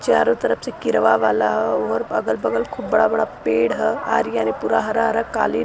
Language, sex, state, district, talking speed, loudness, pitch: Hindi, female, Uttar Pradesh, Varanasi, 200 wpm, -19 LUFS, 110 Hz